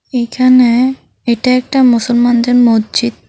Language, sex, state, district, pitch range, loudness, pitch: Bengali, female, Tripura, South Tripura, 235-255 Hz, -11 LUFS, 245 Hz